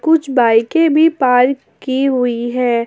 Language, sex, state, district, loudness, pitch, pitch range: Hindi, female, Jharkhand, Palamu, -14 LUFS, 255 Hz, 245-300 Hz